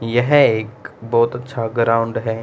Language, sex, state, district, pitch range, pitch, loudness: Hindi, male, Haryana, Rohtak, 115-120 Hz, 115 Hz, -17 LUFS